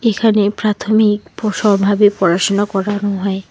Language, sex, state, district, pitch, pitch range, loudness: Bengali, female, West Bengal, Alipurduar, 205 Hz, 200-215 Hz, -15 LUFS